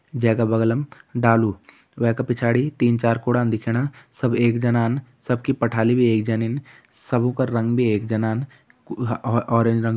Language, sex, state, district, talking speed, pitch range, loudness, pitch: Hindi, male, Uttarakhand, Tehri Garhwal, 180 wpm, 115-125 Hz, -21 LUFS, 120 Hz